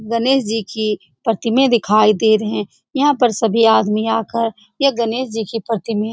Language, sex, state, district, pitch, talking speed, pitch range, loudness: Hindi, female, Bihar, Saran, 225 Hz, 175 wpm, 215-230 Hz, -17 LUFS